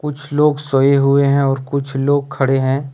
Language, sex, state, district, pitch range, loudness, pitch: Hindi, male, Jharkhand, Deoghar, 135-145 Hz, -16 LUFS, 140 Hz